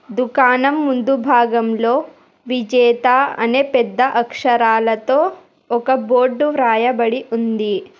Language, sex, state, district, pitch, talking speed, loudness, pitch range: Telugu, female, Telangana, Hyderabad, 250 Hz, 85 wpm, -16 LUFS, 235-265 Hz